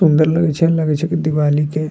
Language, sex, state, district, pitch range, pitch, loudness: Bajjika, male, Bihar, Vaishali, 150-165 Hz, 155 Hz, -16 LUFS